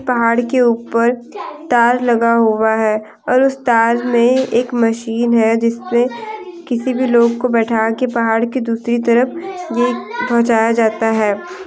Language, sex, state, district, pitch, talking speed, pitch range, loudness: Hindi, female, Jharkhand, Deoghar, 235 Hz, 150 wpm, 230-250 Hz, -15 LUFS